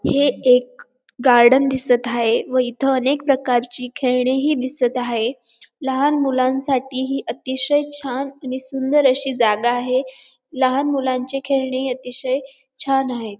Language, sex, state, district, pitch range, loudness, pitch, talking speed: Marathi, female, Maharashtra, Dhule, 250-270 Hz, -19 LUFS, 260 Hz, 125 wpm